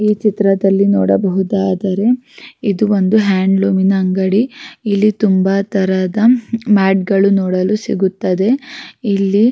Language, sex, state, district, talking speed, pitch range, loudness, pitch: Kannada, female, Karnataka, Raichur, 90 wpm, 190-215 Hz, -14 LUFS, 195 Hz